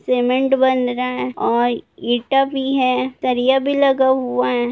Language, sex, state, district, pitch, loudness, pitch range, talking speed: Hindi, female, Bihar, Gopalganj, 255 Hz, -18 LUFS, 240-265 Hz, 165 wpm